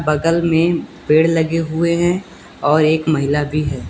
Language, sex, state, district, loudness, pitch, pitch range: Hindi, male, Uttar Pradesh, Lucknow, -16 LUFS, 160 Hz, 150-165 Hz